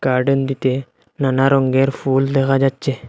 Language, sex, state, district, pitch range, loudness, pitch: Bengali, male, Assam, Hailakandi, 130-135 Hz, -17 LUFS, 135 Hz